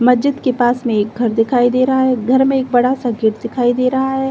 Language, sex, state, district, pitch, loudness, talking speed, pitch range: Hindi, female, Chhattisgarh, Bilaspur, 250 Hz, -15 LUFS, 280 wpm, 240-260 Hz